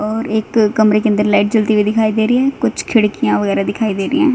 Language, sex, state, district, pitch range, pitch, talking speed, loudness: Hindi, female, Haryana, Rohtak, 210-225 Hz, 215 Hz, 260 wpm, -15 LUFS